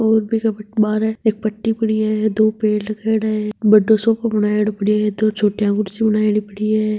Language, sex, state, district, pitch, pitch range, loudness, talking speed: Marwari, male, Rajasthan, Nagaur, 215 Hz, 210-220 Hz, -18 LUFS, 180 wpm